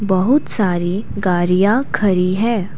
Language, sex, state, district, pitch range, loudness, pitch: Hindi, female, Assam, Kamrup Metropolitan, 180-215 Hz, -16 LUFS, 195 Hz